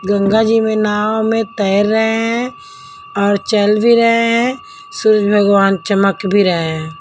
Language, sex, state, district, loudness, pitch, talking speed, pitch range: Hindi, female, Delhi, New Delhi, -14 LUFS, 215 Hz, 160 wpm, 200-230 Hz